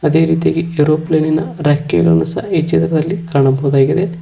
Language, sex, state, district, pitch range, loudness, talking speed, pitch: Kannada, male, Karnataka, Koppal, 135-165 Hz, -14 LUFS, 115 wpm, 155 Hz